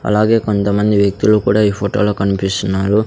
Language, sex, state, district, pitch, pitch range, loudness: Telugu, male, Andhra Pradesh, Sri Satya Sai, 100 Hz, 100-105 Hz, -15 LUFS